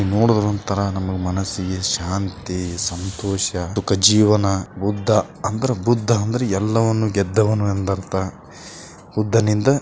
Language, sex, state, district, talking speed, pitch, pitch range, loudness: Kannada, male, Karnataka, Bijapur, 100 wpm, 100 Hz, 95-110 Hz, -20 LUFS